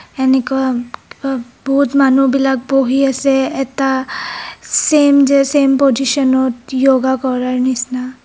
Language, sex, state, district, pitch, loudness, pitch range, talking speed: Assamese, female, Assam, Kamrup Metropolitan, 270 Hz, -14 LUFS, 260-275 Hz, 100 wpm